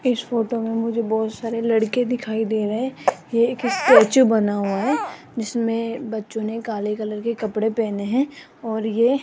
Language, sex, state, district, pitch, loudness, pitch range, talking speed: Hindi, female, Rajasthan, Jaipur, 230 Hz, -21 LUFS, 220-240 Hz, 190 wpm